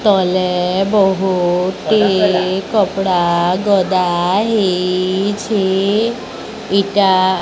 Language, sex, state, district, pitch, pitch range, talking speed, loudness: Odia, female, Odisha, Sambalpur, 190 Hz, 185-200 Hz, 55 wpm, -15 LUFS